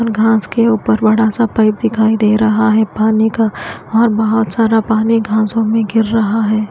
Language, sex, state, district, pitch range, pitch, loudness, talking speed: Hindi, female, Haryana, Jhajjar, 215-225 Hz, 220 Hz, -13 LUFS, 190 wpm